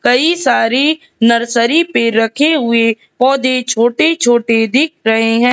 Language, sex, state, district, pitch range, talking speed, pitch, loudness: Hindi, female, Madhya Pradesh, Katni, 230-285 Hz, 130 wpm, 240 Hz, -12 LUFS